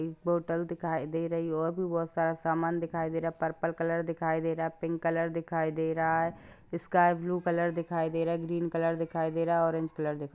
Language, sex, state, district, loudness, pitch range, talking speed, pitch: Hindi, female, Bihar, Gaya, -31 LUFS, 160-170 Hz, 255 wpm, 165 Hz